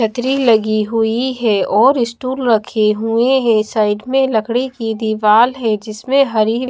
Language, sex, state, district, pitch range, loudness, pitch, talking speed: Hindi, female, Bihar, Katihar, 215-255 Hz, -15 LUFS, 225 Hz, 150 wpm